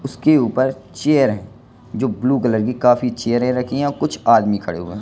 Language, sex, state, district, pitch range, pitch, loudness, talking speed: Hindi, male, Madhya Pradesh, Katni, 110-135 Hz, 125 Hz, -18 LUFS, 205 wpm